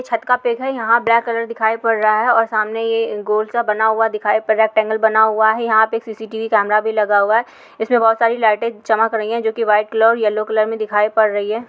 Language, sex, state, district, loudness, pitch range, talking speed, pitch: Hindi, female, Uttar Pradesh, Hamirpur, -16 LUFS, 215-230 Hz, 275 wpm, 220 Hz